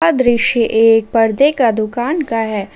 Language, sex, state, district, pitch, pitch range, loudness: Hindi, female, Jharkhand, Ranchi, 230 Hz, 225-255 Hz, -14 LUFS